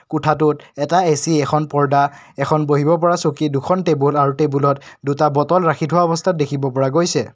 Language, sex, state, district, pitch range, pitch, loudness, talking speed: Assamese, male, Assam, Kamrup Metropolitan, 145-160 Hz, 150 Hz, -17 LUFS, 170 wpm